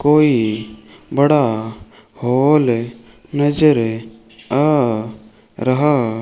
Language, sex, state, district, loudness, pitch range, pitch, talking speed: Hindi, male, Rajasthan, Bikaner, -16 LUFS, 110-145 Hz, 120 Hz, 65 wpm